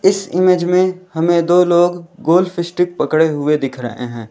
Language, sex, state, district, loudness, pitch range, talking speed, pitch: Hindi, male, Uttar Pradesh, Lalitpur, -15 LUFS, 155-180 Hz, 180 wpm, 175 Hz